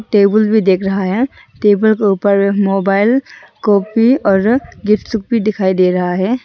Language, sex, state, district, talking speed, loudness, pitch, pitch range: Hindi, female, Arunachal Pradesh, Longding, 165 wpm, -14 LUFS, 205 Hz, 195-220 Hz